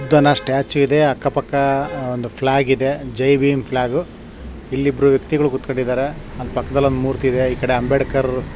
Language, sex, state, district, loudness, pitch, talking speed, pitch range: Kannada, male, Karnataka, Shimoga, -18 LUFS, 135 Hz, 140 wpm, 130-140 Hz